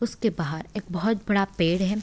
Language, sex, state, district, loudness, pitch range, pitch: Hindi, female, Uttar Pradesh, Deoria, -26 LUFS, 175-215 Hz, 200 Hz